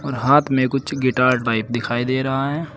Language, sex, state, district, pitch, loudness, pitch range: Hindi, male, Uttar Pradesh, Saharanpur, 130 Hz, -19 LUFS, 125-135 Hz